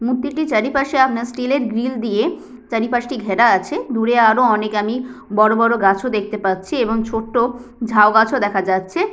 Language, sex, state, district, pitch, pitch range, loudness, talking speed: Bengali, female, West Bengal, Jhargram, 230 Hz, 215-250 Hz, -17 LUFS, 165 wpm